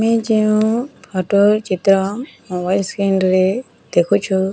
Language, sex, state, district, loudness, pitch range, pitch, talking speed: Odia, male, Odisha, Nuapada, -17 LUFS, 190-220 Hz, 200 Hz, 120 wpm